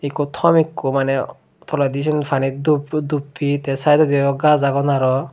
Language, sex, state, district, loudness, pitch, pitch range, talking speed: Chakma, male, Tripura, Dhalai, -18 LUFS, 140 Hz, 135-150 Hz, 170 wpm